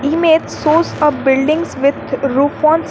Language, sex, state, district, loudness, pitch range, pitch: English, female, Jharkhand, Garhwa, -14 LUFS, 275-320 Hz, 300 Hz